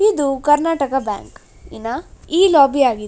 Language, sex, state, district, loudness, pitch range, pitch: Kannada, female, Karnataka, Dakshina Kannada, -16 LUFS, 270-320 Hz, 280 Hz